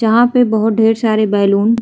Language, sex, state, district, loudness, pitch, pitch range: Hindi, female, Uttar Pradesh, Hamirpur, -13 LUFS, 225 Hz, 215-230 Hz